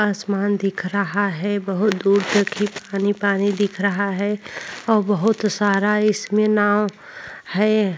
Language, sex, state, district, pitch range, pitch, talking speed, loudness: Hindi, female, Uttar Pradesh, Varanasi, 200-210 Hz, 205 Hz, 135 wpm, -20 LUFS